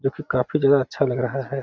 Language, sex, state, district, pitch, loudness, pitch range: Hindi, male, Bihar, Gaya, 135 Hz, -22 LUFS, 130-140 Hz